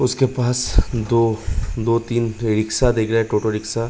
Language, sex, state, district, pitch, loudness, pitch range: Hindi, male, Uttar Pradesh, Hamirpur, 115 Hz, -20 LUFS, 110-120 Hz